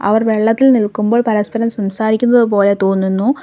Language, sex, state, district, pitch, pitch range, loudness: Malayalam, female, Kerala, Kollam, 220 Hz, 205-235 Hz, -14 LUFS